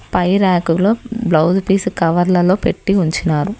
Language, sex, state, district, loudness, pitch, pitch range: Telugu, female, Telangana, Hyderabad, -15 LUFS, 185 Hz, 170-195 Hz